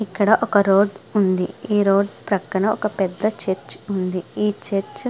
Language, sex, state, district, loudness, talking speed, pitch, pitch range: Telugu, female, Andhra Pradesh, Srikakulam, -20 LUFS, 165 wpm, 200 Hz, 190-210 Hz